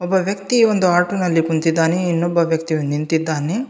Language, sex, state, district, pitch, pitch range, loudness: Kannada, male, Karnataka, Bidar, 170 Hz, 160-190 Hz, -18 LUFS